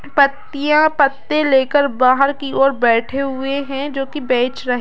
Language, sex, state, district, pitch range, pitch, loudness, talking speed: Hindi, female, Bihar, Gopalganj, 265-285 Hz, 275 Hz, -16 LUFS, 175 wpm